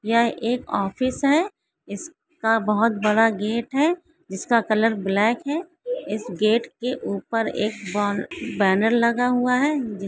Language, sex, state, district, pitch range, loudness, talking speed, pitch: Hindi, female, Maharashtra, Solapur, 210-265 Hz, -22 LUFS, 145 wpm, 230 Hz